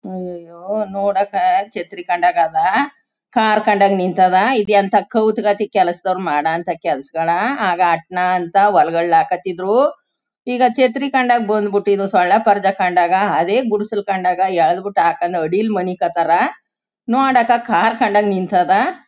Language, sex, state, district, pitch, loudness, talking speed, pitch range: Kannada, female, Karnataka, Chamarajanagar, 200 Hz, -16 LUFS, 130 wpm, 180-225 Hz